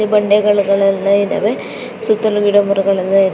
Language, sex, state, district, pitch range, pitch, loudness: Kannada, female, Karnataka, Raichur, 195-210 Hz, 200 Hz, -14 LUFS